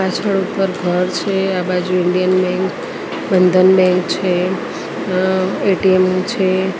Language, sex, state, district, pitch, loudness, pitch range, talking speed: Gujarati, female, Gujarat, Gandhinagar, 185 Hz, -16 LUFS, 180-190 Hz, 125 wpm